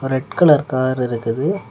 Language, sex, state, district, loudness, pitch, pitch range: Tamil, male, Tamil Nadu, Kanyakumari, -17 LUFS, 130 Hz, 130-150 Hz